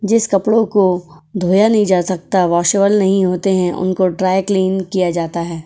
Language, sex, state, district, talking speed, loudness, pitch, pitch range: Hindi, female, Goa, North and South Goa, 180 wpm, -15 LUFS, 185 Hz, 180-200 Hz